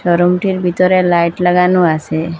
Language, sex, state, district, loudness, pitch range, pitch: Bengali, female, Assam, Hailakandi, -13 LUFS, 170-180 Hz, 175 Hz